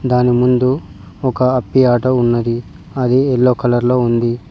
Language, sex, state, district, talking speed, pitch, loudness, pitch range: Telugu, male, Telangana, Mahabubabad, 145 wpm, 125 Hz, -15 LUFS, 120-130 Hz